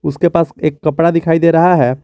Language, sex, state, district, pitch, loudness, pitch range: Hindi, male, Jharkhand, Garhwa, 165 Hz, -13 LUFS, 150-170 Hz